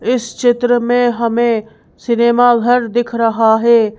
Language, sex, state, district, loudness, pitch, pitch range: Hindi, female, Madhya Pradesh, Bhopal, -13 LUFS, 235 Hz, 230-245 Hz